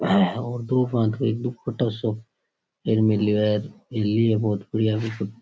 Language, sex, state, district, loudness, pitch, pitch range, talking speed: Rajasthani, male, Rajasthan, Churu, -24 LUFS, 110 Hz, 110-120 Hz, 155 wpm